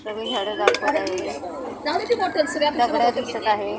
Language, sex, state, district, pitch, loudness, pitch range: Marathi, female, Maharashtra, Mumbai Suburban, 245 Hz, -23 LUFS, 225-320 Hz